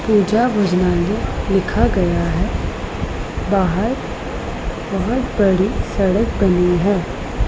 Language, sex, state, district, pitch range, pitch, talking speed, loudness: Hindi, female, Punjab, Pathankot, 180-215 Hz, 195 Hz, 90 wpm, -18 LUFS